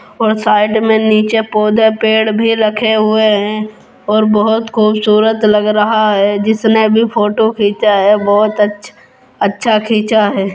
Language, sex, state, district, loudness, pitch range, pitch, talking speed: Hindi, female, Uttar Pradesh, Jyotiba Phule Nagar, -12 LUFS, 210-220 Hz, 215 Hz, 150 wpm